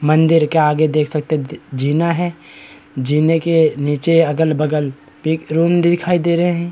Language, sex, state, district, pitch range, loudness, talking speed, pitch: Hindi, male, Bihar, East Champaran, 150-165 Hz, -16 LUFS, 180 wpm, 155 Hz